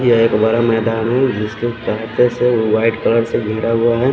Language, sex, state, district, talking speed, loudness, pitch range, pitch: Hindi, male, Odisha, Khordha, 190 wpm, -16 LUFS, 115-120 Hz, 115 Hz